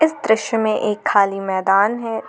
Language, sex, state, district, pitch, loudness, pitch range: Hindi, female, Jharkhand, Garhwa, 215 Hz, -18 LUFS, 195-225 Hz